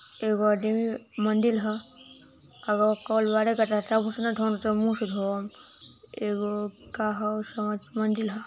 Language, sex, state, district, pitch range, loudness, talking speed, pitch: Hindi, female, Uttar Pradesh, Ghazipur, 210-225 Hz, -27 LUFS, 100 wpm, 215 Hz